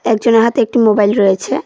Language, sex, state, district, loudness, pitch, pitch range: Bengali, female, West Bengal, Cooch Behar, -12 LUFS, 225 Hz, 210-240 Hz